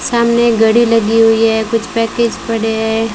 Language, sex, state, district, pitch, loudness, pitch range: Hindi, female, Rajasthan, Bikaner, 225 Hz, -12 LUFS, 225-235 Hz